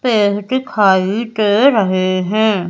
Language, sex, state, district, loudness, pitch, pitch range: Hindi, female, Madhya Pradesh, Umaria, -14 LUFS, 210 Hz, 190-225 Hz